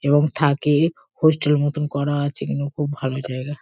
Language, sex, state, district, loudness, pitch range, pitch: Bengali, female, West Bengal, Kolkata, -21 LUFS, 140-150 Hz, 145 Hz